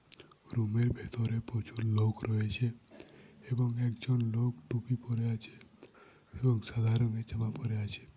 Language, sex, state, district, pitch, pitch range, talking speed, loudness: Bengali, male, West Bengal, Purulia, 115 Hz, 110-120 Hz, 130 wpm, -34 LUFS